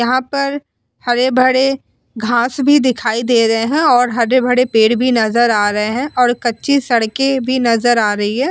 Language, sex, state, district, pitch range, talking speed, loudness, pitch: Hindi, female, Uttar Pradesh, Muzaffarnagar, 230-260 Hz, 175 wpm, -14 LUFS, 245 Hz